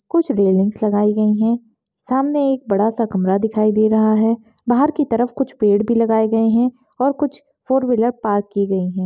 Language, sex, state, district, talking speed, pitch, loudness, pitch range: Hindi, female, Maharashtra, Solapur, 200 wpm, 225 Hz, -17 LUFS, 210-255 Hz